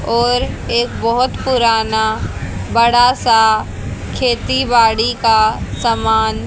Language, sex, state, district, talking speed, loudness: Hindi, female, Haryana, Jhajjar, 95 wpm, -14 LUFS